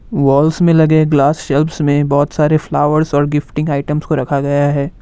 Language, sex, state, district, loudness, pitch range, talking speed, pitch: Hindi, male, Assam, Kamrup Metropolitan, -14 LUFS, 140-155 Hz, 190 wpm, 145 Hz